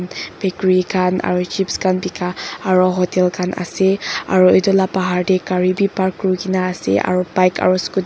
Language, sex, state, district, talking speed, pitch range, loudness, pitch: Nagamese, female, Nagaland, Dimapur, 185 wpm, 180-190 Hz, -17 LUFS, 185 Hz